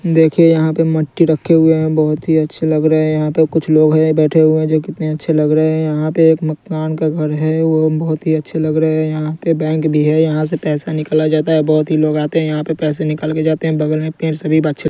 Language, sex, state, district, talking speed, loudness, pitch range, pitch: Hindi, male, Chandigarh, Chandigarh, 275 wpm, -14 LUFS, 155-160 Hz, 155 Hz